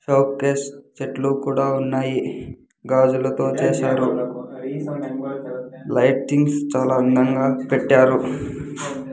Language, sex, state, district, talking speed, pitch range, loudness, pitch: Telugu, male, Andhra Pradesh, Sri Satya Sai, 70 wpm, 130-140 Hz, -20 LUFS, 135 Hz